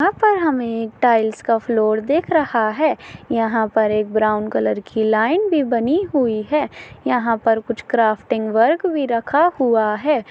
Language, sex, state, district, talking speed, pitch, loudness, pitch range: Hindi, female, Goa, North and South Goa, 170 wpm, 230 Hz, -18 LUFS, 220-300 Hz